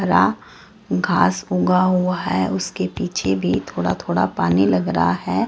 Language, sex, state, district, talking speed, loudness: Hindi, female, Bihar, Katihar, 155 wpm, -19 LUFS